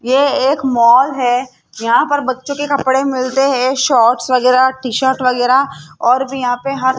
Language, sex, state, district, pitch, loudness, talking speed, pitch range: Hindi, female, Rajasthan, Jaipur, 260 Hz, -14 LUFS, 180 wpm, 250-270 Hz